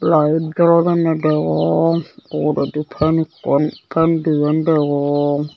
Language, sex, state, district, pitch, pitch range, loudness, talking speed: Chakma, female, Tripura, Unakoti, 155 Hz, 145-160 Hz, -17 LUFS, 95 wpm